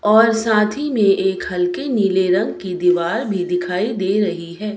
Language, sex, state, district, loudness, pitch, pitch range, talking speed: Hindi, female, Himachal Pradesh, Shimla, -18 LUFS, 200 Hz, 185-225 Hz, 175 wpm